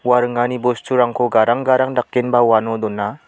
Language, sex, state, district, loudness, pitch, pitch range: Garo, male, Meghalaya, West Garo Hills, -17 LUFS, 125 Hz, 115-125 Hz